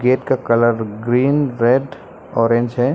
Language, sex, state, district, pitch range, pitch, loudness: Hindi, male, Arunachal Pradesh, Lower Dibang Valley, 115-130 Hz, 125 Hz, -17 LUFS